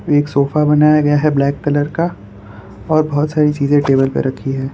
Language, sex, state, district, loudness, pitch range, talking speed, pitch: Hindi, male, Gujarat, Valsad, -15 LUFS, 135-150 Hz, 205 wpm, 145 Hz